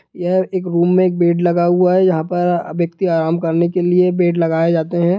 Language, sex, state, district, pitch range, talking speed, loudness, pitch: Hindi, male, Bihar, Sitamarhi, 170-180 Hz, 240 wpm, -16 LUFS, 175 Hz